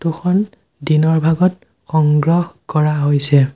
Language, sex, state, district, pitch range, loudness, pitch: Assamese, male, Assam, Sonitpur, 150-170 Hz, -16 LUFS, 155 Hz